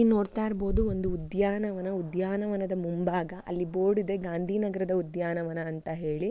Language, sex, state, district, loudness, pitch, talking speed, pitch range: Kannada, female, Karnataka, Shimoga, -30 LUFS, 185 Hz, 140 wpm, 175-200 Hz